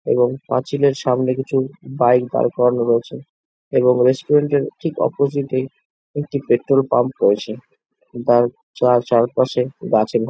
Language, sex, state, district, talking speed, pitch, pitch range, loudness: Bengali, male, West Bengal, Jhargram, 140 wpm, 130 Hz, 120-135 Hz, -18 LUFS